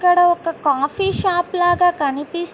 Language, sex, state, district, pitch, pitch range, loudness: Telugu, female, Andhra Pradesh, Guntur, 350 Hz, 300-355 Hz, -18 LUFS